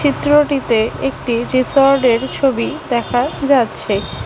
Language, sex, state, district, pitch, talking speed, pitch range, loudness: Bengali, female, West Bengal, Alipurduar, 260 Hz, 85 wpm, 240-280 Hz, -15 LUFS